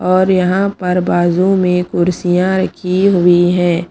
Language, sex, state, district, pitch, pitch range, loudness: Hindi, female, Punjab, Pathankot, 180 Hz, 175-185 Hz, -13 LUFS